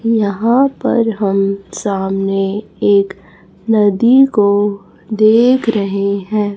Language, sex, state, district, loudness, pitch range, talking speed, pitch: Hindi, female, Chhattisgarh, Raipur, -14 LUFS, 200-225 Hz, 90 wpm, 205 Hz